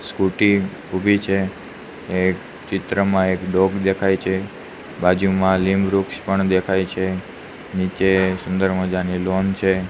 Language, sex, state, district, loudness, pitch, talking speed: Gujarati, male, Gujarat, Gandhinagar, -20 LUFS, 95 Hz, 120 wpm